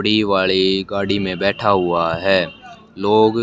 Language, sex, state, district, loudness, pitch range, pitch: Hindi, male, Haryana, Jhajjar, -17 LUFS, 95-105 Hz, 95 Hz